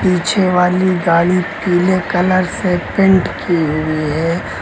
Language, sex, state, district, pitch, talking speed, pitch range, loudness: Hindi, male, Uttar Pradesh, Lucknow, 180 Hz, 130 wpm, 170-185 Hz, -15 LUFS